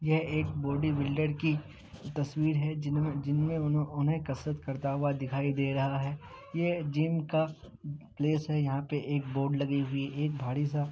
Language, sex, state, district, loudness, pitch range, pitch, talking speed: Hindi, male, Bihar, Kishanganj, -32 LUFS, 140-155 Hz, 145 Hz, 170 wpm